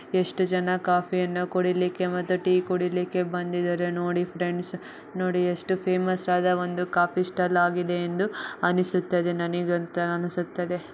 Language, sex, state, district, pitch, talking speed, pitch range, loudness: Kannada, female, Karnataka, Bellary, 180 Hz, 130 wpm, 175-180 Hz, -26 LUFS